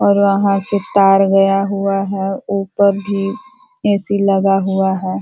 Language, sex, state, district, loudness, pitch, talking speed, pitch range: Hindi, female, Uttar Pradesh, Ghazipur, -15 LUFS, 195 Hz, 150 wpm, 195-200 Hz